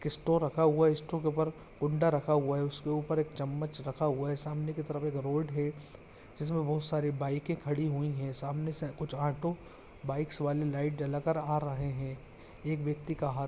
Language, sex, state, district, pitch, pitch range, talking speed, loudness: Hindi, male, Andhra Pradesh, Visakhapatnam, 150 Hz, 145-155 Hz, 215 wpm, -33 LUFS